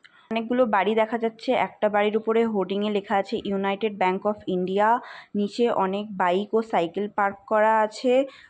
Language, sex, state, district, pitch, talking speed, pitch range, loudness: Bengali, female, West Bengal, North 24 Parganas, 210 Hz, 170 wpm, 200-225 Hz, -24 LUFS